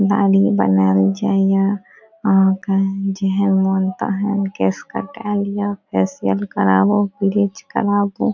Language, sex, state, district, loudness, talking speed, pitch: Maithili, female, Bihar, Saharsa, -18 LUFS, 110 wpm, 195 Hz